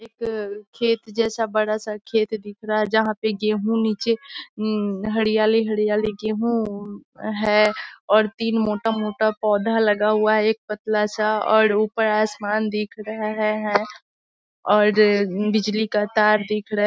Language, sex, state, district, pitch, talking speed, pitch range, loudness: Hindi, female, Bihar, Muzaffarpur, 215 Hz, 140 wpm, 210-220 Hz, -21 LUFS